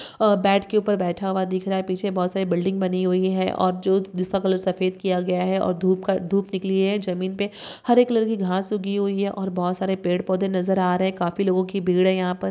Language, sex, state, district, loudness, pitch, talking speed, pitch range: Hindi, female, Chhattisgarh, Bilaspur, -23 LUFS, 190 Hz, 265 wpm, 185-195 Hz